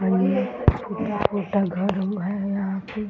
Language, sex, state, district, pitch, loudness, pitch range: Hindi, female, Bihar, Muzaffarpur, 195 Hz, -24 LUFS, 185-205 Hz